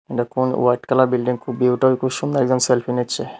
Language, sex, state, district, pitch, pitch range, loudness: Bengali, male, Tripura, Unakoti, 125 Hz, 125-130 Hz, -19 LUFS